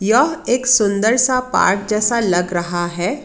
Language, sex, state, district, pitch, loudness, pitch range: Hindi, female, Karnataka, Bangalore, 215 Hz, -16 LUFS, 185-255 Hz